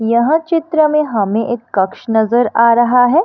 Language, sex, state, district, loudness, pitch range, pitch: Hindi, female, Bihar, Madhepura, -14 LUFS, 225-300 Hz, 240 Hz